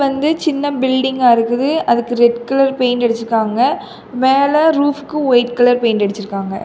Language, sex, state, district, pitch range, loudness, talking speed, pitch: Tamil, female, Tamil Nadu, Kanyakumari, 235-280 Hz, -15 LUFS, 145 wpm, 250 Hz